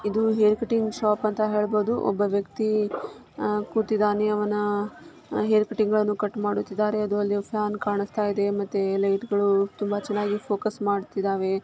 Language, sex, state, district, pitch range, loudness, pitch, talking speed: Kannada, female, Karnataka, Shimoga, 205-215 Hz, -25 LUFS, 210 Hz, 140 wpm